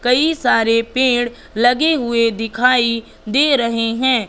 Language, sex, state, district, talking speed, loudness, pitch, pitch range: Hindi, female, Madhya Pradesh, Katni, 125 wpm, -16 LUFS, 240 Hz, 230-255 Hz